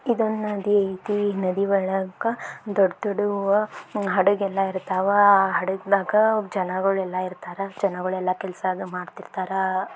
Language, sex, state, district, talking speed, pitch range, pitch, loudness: Kannada, female, Karnataka, Belgaum, 120 wpm, 185-205 Hz, 195 Hz, -23 LUFS